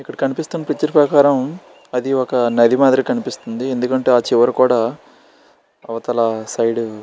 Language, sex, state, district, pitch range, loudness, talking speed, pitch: Telugu, male, Andhra Pradesh, Srikakulam, 120-135 Hz, -17 LUFS, 135 wpm, 125 Hz